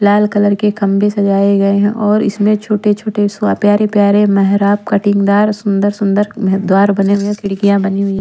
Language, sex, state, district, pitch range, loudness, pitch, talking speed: Hindi, female, Bihar, Patna, 200-210 Hz, -13 LUFS, 205 Hz, 155 wpm